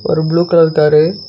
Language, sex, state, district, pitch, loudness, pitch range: Tamil, male, Karnataka, Bangalore, 160 Hz, -11 LUFS, 155-170 Hz